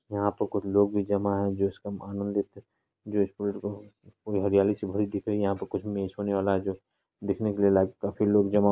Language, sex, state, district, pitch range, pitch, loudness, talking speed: Hindi, female, Bihar, Saharsa, 100-105 Hz, 100 Hz, -28 LUFS, 225 wpm